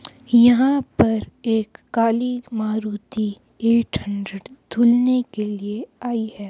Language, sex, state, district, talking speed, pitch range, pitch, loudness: Hindi, male, Himachal Pradesh, Shimla, 110 wpm, 210-245 Hz, 230 Hz, -20 LUFS